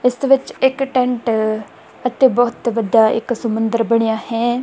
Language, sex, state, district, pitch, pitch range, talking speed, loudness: Punjabi, female, Punjab, Kapurthala, 235 Hz, 225-250 Hz, 155 wpm, -17 LUFS